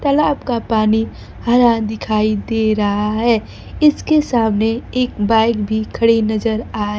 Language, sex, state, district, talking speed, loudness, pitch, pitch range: Hindi, female, Bihar, Kaimur, 135 wpm, -16 LUFS, 225 Hz, 215-240 Hz